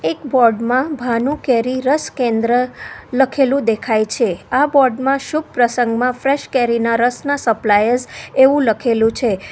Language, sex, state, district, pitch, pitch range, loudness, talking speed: Gujarati, female, Gujarat, Valsad, 250 Hz, 230-270 Hz, -16 LUFS, 130 wpm